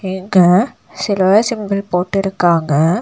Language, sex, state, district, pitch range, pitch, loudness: Tamil, female, Tamil Nadu, Nilgiris, 180-200 Hz, 190 Hz, -15 LUFS